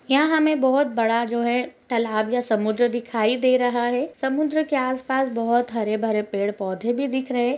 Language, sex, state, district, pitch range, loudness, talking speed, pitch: Hindi, female, Uttar Pradesh, Gorakhpur, 225-265 Hz, -22 LUFS, 215 wpm, 245 Hz